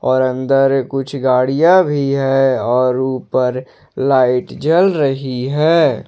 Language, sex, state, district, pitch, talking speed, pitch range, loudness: Hindi, male, Jharkhand, Ranchi, 135 Hz, 120 wpm, 130-140 Hz, -15 LUFS